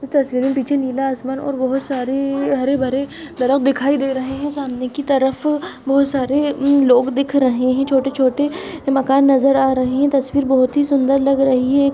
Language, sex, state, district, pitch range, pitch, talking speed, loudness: Hindi, female, Chhattisgarh, Bastar, 265-280 Hz, 275 Hz, 200 wpm, -17 LUFS